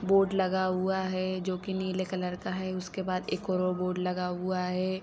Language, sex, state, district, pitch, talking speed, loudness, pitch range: Hindi, female, Jharkhand, Sahebganj, 185 Hz, 225 wpm, -31 LUFS, 185-190 Hz